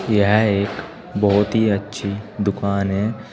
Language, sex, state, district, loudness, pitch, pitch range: Hindi, male, Uttar Pradesh, Saharanpur, -20 LUFS, 100 Hz, 100-105 Hz